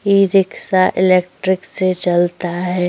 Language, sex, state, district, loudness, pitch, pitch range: Hindi, female, Uttar Pradesh, Jyotiba Phule Nagar, -16 LUFS, 185 Hz, 180-190 Hz